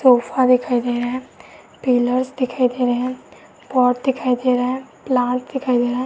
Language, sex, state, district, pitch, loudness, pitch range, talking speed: Hindi, female, Uttar Pradesh, Varanasi, 250 Hz, -19 LUFS, 245-255 Hz, 200 wpm